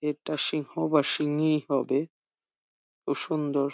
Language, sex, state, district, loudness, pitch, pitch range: Bengali, female, West Bengal, Jhargram, -26 LUFS, 150 Hz, 140-155 Hz